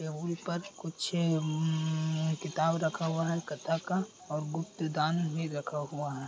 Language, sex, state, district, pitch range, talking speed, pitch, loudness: Hindi, male, Bihar, Purnia, 155-170 Hz, 160 wpm, 160 Hz, -33 LUFS